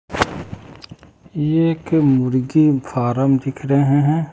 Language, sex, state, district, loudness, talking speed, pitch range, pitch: Hindi, male, Bihar, West Champaran, -17 LUFS, 85 wpm, 130-155 Hz, 140 Hz